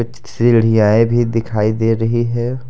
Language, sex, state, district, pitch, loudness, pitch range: Hindi, male, Jharkhand, Deoghar, 115 Hz, -15 LUFS, 110-120 Hz